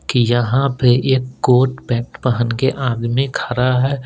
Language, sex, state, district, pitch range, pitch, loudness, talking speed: Hindi, male, Bihar, Patna, 120-130 Hz, 125 Hz, -17 LUFS, 160 wpm